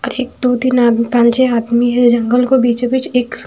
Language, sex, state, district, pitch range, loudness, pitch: Hindi, female, Punjab, Fazilka, 235-255 Hz, -13 LUFS, 245 Hz